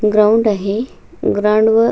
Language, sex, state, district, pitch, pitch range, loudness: Marathi, female, Maharashtra, Solapur, 215 Hz, 210-225 Hz, -15 LUFS